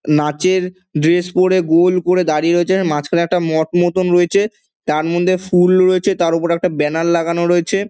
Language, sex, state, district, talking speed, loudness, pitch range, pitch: Bengali, male, West Bengal, Dakshin Dinajpur, 200 wpm, -15 LUFS, 165-185 Hz, 175 Hz